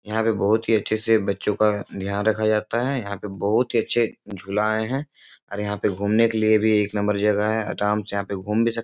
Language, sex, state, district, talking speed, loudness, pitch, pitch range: Hindi, male, Bihar, Supaul, 265 wpm, -22 LUFS, 105 Hz, 105-110 Hz